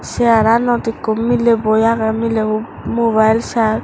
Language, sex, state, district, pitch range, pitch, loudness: Chakma, female, Tripura, West Tripura, 220-230 Hz, 225 Hz, -15 LUFS